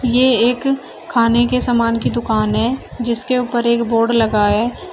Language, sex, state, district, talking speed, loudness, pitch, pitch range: Hindi, female, Uttar Pradesh, Shamli, 170 wpm, -16 LUFS, 235 Hz, 230-250 Hz